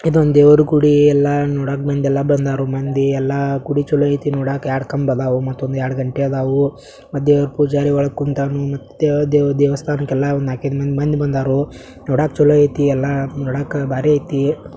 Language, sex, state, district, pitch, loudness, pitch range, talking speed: Kannada, male, Karnataka, Belgaum, 140 Hz, -17 LUFS, 135-145 Hz, 165 wpm